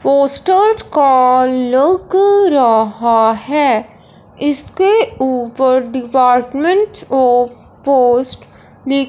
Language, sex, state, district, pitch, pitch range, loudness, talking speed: Hindi, male, Punjab, Fazilka, 265 Hz, 250-300 Hz, -13 LUFS, 75 wpm